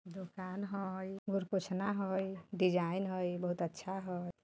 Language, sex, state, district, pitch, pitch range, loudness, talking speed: Bajjika, female, Bihar, Vaishali, 190 Hz, 180-195 Hz, -38 LUFS, 135 wpm